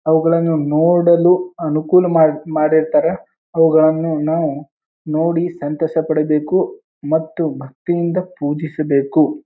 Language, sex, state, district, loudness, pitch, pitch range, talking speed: Kannada, male, Karnataka, Bijapur, -16 LUFS, 160 Hz, 155-170 Hz, 90 wpm